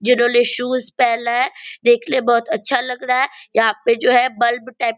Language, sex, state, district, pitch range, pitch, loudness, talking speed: Hindi, female, Bihar, Purnia, 235-260 Hz, 250 Hz, -16 LUFS, 215 wpm